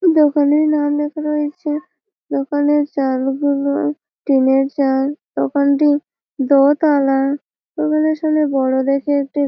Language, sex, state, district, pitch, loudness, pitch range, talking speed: Bengali, female, West Bengal, Malda, 290 Hz, -17 LUFS, 275-300 Hz, 115 wpm